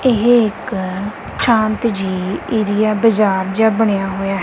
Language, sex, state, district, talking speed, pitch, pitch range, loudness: Punjabi, female, Punjab, Kapurthala, 135 wpm, 215 Hz, 195-225 Hz, -16 LUFS